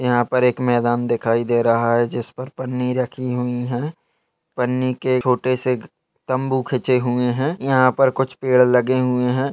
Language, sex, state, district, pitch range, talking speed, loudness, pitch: Hindi, male, Chhattisgarh, Jashpur, 120-130 Hz, 190 wpm, -19 LUFS, 125 Hz